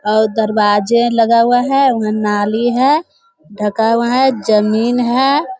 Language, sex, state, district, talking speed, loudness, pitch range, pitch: Hindi, female, Bihar, Jamui, 140 wpm, -13 LUFS, 215-260 Hz, 230 Hz